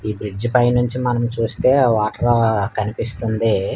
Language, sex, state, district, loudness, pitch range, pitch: Telugu, male, Andhra Pradesh, Manyam, -18 LUFS, 110-120 Hz, 115 Hz